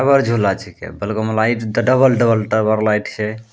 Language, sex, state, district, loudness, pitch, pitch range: Angika, male, Bihar, Bhagalpur, -17 LUFS, 110 Hz, 105-115 Hz